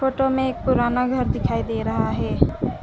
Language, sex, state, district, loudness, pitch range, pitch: Hindi, female, West Bengal, Alipurduar, -22 LUFS, 250-265 Hz, 260 Hz